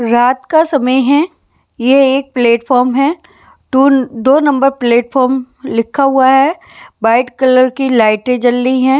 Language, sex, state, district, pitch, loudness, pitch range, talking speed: Hindi, female, Bihar, West Champaran, 260 Hz, -12 LUFS, 245-275 Hz, 145 wpm